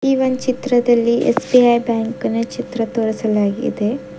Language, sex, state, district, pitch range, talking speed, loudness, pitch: Kannada, female, Karnataka, Bidar, 225-250 Hz, 100 wpm, -17 LUFS, 240 Hz